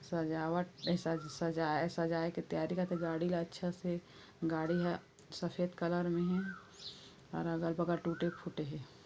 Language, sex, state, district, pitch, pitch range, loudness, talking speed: Chhattisgarhi, female, Chhattisgarh, Kabirdham, 170 Hz, 165-175 Hz, -37 LUFS, 160 wpm